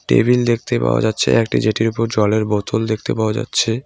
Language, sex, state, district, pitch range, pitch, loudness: Bengali, male, West Bengal, Cooch Behar, 110-115 Hz, 110 Hz, -17 LUFS